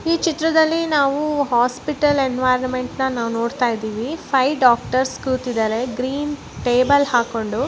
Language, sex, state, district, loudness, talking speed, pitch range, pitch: Kannada, male, Karnataka, Raichur, -19 LUFS, 125 wpm, 245-290 Hz, 255 Hz